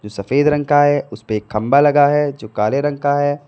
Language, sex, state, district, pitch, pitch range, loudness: Hindi, male, Uttar Pradesh, Lalitpur, 145 Hz, 110-145 Hz, -16 LUFS